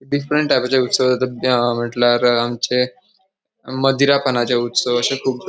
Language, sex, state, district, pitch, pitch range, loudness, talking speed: Konkani, male, Goa, North and South Goa, 125 Hz, 120-135 Hz, -17 LUFS, 120 wpm